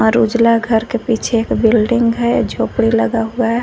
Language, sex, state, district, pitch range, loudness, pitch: Hindi, female, Jharkhand, Garhwa, 225-235 Hz, -15 LUFS, 230 Hz